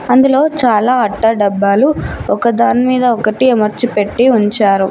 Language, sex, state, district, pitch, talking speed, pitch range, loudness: Telugu, female, Telangana, Mahabubabad, 235 Hz, 135 wpm, 210-255 Hz, -12 LUFS